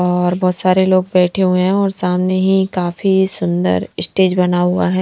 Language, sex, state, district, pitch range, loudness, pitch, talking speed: Hindi, female, Punjab, Fazilka, 180-190 Hz, -15 LUFS, 185 Hz, 205 wpm